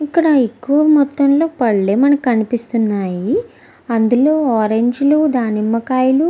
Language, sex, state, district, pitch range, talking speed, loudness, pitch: Telugu, female, Andhra Pradesh, Visakhapatnam, 225-290 Hz, 105 wpm, -15 LUFS, 255 Hz